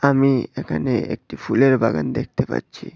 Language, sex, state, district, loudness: Bengali, male, Tripura, West Tripura, -20 LUFS